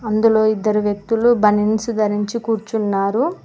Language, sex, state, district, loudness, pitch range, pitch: Telugu, female, Telangana, Mahabubabad, -18 LUFS, 210-225 Hz, 215 Hz